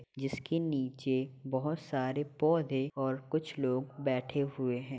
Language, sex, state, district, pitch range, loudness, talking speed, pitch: Hindi, male, Uttar Pradesh, Hamirpur, 130-145 Hz, -34 LUFS, 135 wpm, 135 Hz